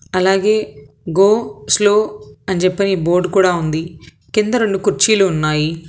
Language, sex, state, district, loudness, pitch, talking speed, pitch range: Telugu, female, Telangana, Hyderabad, -15 LUFS, 185 Hz, 120 wpm, 160-205 Hz